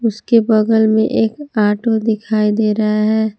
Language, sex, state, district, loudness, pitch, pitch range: Hindi, female, Jharkhand, Palamu, -15 LUFS, 220 Hz, 215-225 Hz